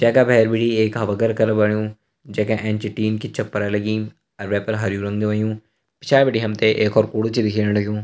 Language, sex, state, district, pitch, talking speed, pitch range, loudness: Garhwali, male, Uttarakhand, Uttarkashi, 110 Hz, 210 wpm, 105-110 Hz, -20 LUFS